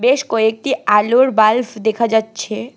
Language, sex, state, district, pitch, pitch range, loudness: Bengali, female, West Bengal, Alipurduar, 225 Hz, 220-250 Hz, -15 LUFS